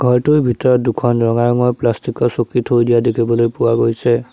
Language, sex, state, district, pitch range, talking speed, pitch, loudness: Assamese, male, Assam, Sonitpur, 115-125 Hz, 180 wpm, 120 Hz, -15 LUFS